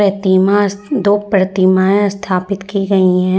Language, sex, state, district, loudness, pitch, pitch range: Hindi, female, Bihar, Vaishali, -14 LUFS, 195 Hz, 185-205 Hz